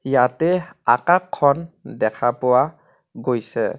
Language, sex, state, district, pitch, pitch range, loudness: Assamese, male, Assam, Kamrup Metropolitan, 140 Hz, 125-175 Hz, -20 LUFS